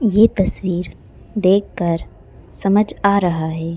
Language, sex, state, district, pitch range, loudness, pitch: Hindi, female, Madhya Pradesh, Bhopal, 170-205 Hz, -18 LUFS, 190 Hz